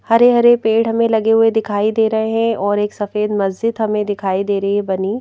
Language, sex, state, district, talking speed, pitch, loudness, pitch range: Hindi, female, Madhya Pradesh, Bhopal, 220 wpm, 220 Hz, -16 LUFS, 205-225 Hz